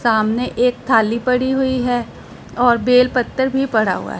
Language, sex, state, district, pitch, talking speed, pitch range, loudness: Hindi, female, Punjab, Pathankot, 245 Hz, 155 wpm, 230-255 Hz, -17 LUFS